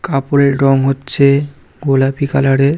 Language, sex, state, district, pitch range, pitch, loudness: Bengali, male, West Bengal, Paschim Medinipur, 135-140 Hz, 140 Hz, -13 LUFS